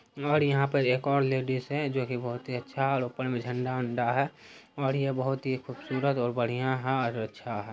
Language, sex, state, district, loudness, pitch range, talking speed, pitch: Hindi, male, Bihar, Araria, -29 LUFS, 125-140 Hz, 240 wpm, 130 Hz